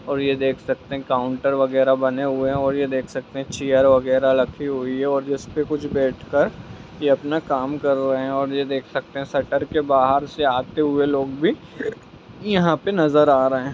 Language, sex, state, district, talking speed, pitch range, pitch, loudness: Magahi, male, Bihar, Gaya, 215 wpm, 130-145 Hz, 135 Hz, -21 LUFS